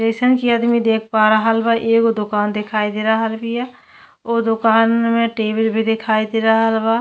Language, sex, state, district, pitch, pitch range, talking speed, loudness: Bhojpuri, female, Uttar Pradesh, Deoria, 225 Hz, 220-230 Hz, 190 wpm, -16 LUFS